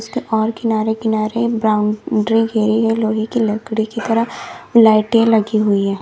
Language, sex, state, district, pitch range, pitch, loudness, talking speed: Hindi, female, Uttar Pradesh, Lalitpur, 215-225 Hz, 220 Hz, -16 LUFS, 160 wpm